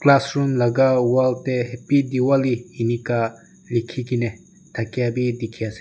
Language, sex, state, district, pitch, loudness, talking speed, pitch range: Nagamese, male, Nagaland, Dimapur, 125 Hz, -21 LUFS, 145 wpm, 120-135 Hz